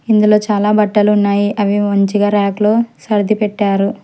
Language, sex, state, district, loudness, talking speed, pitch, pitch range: Telugu, male, Telangana, Hyderabad, -14 LUFS, 150 wpm, 210 Hz, 205-210 Hz